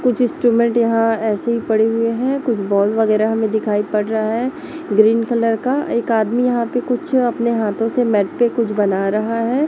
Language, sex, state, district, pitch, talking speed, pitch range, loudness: Hindi, female, Chhattisgarh, Raipur, 230 Hz, 210 wpm, 220-240 Hz, -17 LUFS